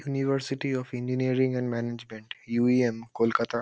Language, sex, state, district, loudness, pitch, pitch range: Bengali, male, West Bengal, Kolkata, -28 LUFS, 125 Hz, 115-130 Hz